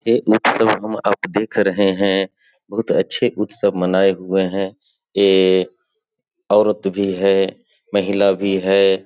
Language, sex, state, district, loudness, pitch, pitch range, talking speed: Hindi, male, Bihar, Sitamarhi, -17 LUFS, 100 Hz, 95-105 Hz, 120 wpm